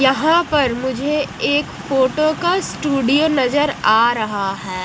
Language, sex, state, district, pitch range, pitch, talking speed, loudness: Hindi, female, Odisha, Malkangiri, 240-300 Hz, 275 Hz, 135 wpm, -17 LUFS